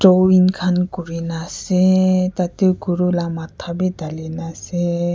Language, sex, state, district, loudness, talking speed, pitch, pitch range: Nagamese, female, Nagaland, Kohima, -19 LUFS, 130 wpm, 180 Hz, 170-185 Hz